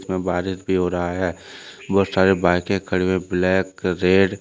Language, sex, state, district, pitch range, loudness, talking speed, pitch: Hindi, male, Jharkhand, Deoghar, 90-95 Hz, -20 LUFS, 175 wpm, 95 Hz